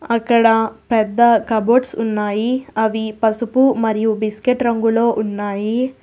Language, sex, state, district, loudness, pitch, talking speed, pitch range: Telugu, female, Telangana, Hyderabad, -17 LUFS, 225 Hz, 100 wpm, 220-235 Hz